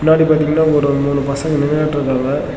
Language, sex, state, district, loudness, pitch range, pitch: Tamil, male, Tamil Nadu, Namakkal, -15 LUFS, 140-155 Hz, 150 Hz